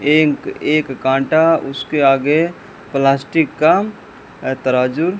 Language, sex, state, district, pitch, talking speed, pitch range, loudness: Hindi, male, Rajasthan, Bikaner, 150 Hz, 105 wpm, 135-165 Hz, -16 LUFS